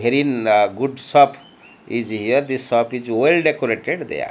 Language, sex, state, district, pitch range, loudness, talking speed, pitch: English, male, Odisha, Malkangiri, 115-140 Hz, -18 LUFS, 165 wpm, 130 Hz